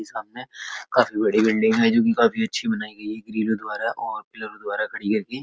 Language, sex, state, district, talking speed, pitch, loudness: Hindi, male, Uttar Pradesh, Etah, 200 wpm, 110 Hz, -23 LUFS